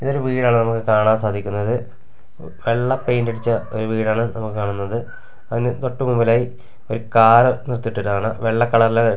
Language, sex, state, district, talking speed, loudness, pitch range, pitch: Malayalam, male, Kerala, Kasaragod, 130 wpm, -19 LUFS, 110-120 Hz, 115 Hz